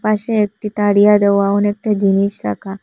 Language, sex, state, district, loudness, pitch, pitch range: Bengali, female, Assam, Hailakandi, -15 LUFS, 205 Hz, 200-210 Hz